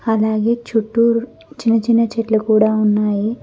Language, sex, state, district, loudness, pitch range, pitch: Telugu, female, Telangana, Mahabubabad, -16 LUFS, 215-230 Hz, 225 Hz